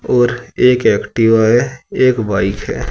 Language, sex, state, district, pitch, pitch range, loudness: Hindi, male, Uttar Pradesh, Saharanpur, 120 Hz, 110-125 Hz, -14 LUFS